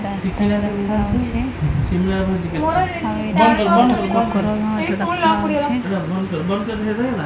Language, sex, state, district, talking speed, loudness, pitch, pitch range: Odia, female, Odisha, Khordha, 75 wpm, -19 LUFS, 210 Hz, 190-225 Hz